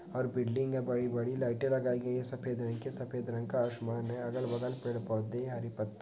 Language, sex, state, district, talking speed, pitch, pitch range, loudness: Hindi, male, Bihar, Sitamarhi, 200 wpm, 125 Hz, 120-125 Hz, -35 LUFS